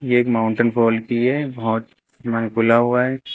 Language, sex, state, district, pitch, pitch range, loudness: Hindi, male, Uttar Pradesh, Lucknow, 120 Hz, 115-125 Hz, -19 LUFS